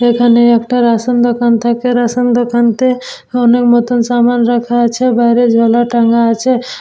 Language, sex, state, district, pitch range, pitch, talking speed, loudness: Bengali, female, West Bengal, Purulia, 235-245 Hz, 240 Hz, 160 wpm, -11 LUFS